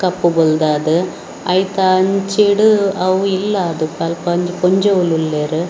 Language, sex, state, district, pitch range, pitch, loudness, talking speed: Tulu, female, Karnataka, Dakshina Kannada, 165-195 Hz, 180 Hz, -15 LUFS, 105 wpm